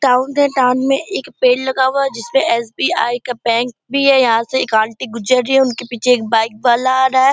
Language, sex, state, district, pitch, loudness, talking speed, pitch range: Hindi, female, Bihar, Purnia, 255 Hz, -15 LUFS, 220 wpm, 235-265 Hz